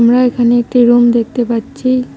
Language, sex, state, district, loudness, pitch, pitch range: Bengali, female, West Bengal, Cooch Behar, -12 LUFS, 240 Hz, 235-250 Hz